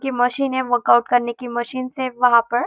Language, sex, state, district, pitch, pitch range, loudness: Hindi, female, Maharashtra, Nagpur, 245 Hz, 240-260 Hz, -19 LUFS